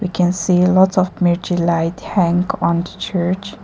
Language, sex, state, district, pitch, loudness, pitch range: English, female, Nagaland, Kohima, 180 Hz, -17 LUFS, 175-185 Hz